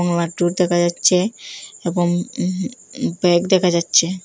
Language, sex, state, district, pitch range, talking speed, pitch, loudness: Bengali, female, Assam, Hailakandi, 175-190 Hz, 115 wpm, 180 Hz, -18 LUFS